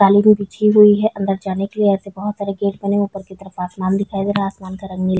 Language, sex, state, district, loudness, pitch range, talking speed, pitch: Hindi, female, Chhattisgarh, Bilaspur, -17 LUFS, 195-205 Hz, 240 wpm, 200 Hz